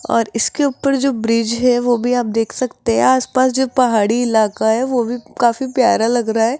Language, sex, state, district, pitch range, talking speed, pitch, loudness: Hindi, female, Rajasthan, Jaipur, 225-255 Hz, 225 wpm, 240 Hz, -16 LUFS